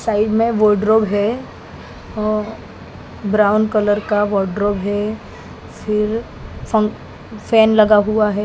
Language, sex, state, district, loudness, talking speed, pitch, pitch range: Hindi, female, Maharashtra, Mumbai Suburban, -17 LUFS, 115 wpm, 215 Hz, 205-220 Hz